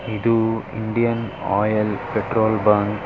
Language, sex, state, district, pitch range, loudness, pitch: Kannada, male, Karnataka, Dharwad, 105-115 Hz, -21 LUFS, 110 Hz